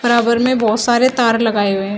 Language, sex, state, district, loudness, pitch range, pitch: Hindi, female, Uttar Pradesh, Shamli, -14 LUFS, 215-240 Hz, 235 Hz